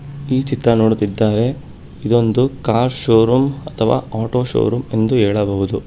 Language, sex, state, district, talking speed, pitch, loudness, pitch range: Kannada, male, Karnataka, Bangalore, 135 wpm, 115 Hz, -16 LUFS, 110-130 Hz